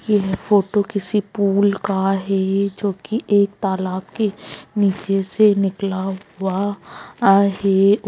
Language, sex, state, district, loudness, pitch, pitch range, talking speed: Magahi, female, Bihar, Gaya, -19 LUFS, 200 Hz, 195-205 Hz, 125 wpm